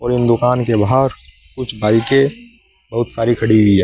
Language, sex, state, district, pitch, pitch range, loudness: Hindi, male, Uttar Pradesh, Saharanpur, 120 Hz, 110-130 Hz, -15 LUFS